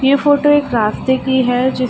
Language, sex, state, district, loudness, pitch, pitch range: Hindi, female, Uttar Pradesh, Ghazipur, -14 LUFS, 260 Hz, 255-280 Hz